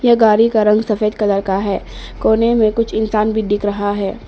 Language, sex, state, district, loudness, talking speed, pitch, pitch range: Hindi, female, Arunachal Pradesh, Papum Pare, -15 LUFS, 225 wpm, 215 Hz, 200-220 Hz